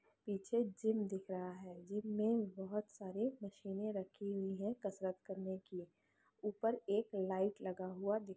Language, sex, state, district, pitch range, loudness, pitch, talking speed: Hindi, female, Chhattisgarh, Sukma, 190-210 Hz, -42 LUFS, 200 Hz, 160 wpm